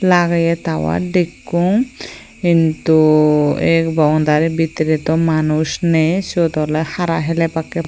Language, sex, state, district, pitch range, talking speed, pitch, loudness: Chakma, female, Tripura, Unakoti, 155-170 Hz, 105 wpm, 165 Hz, -16 LUFS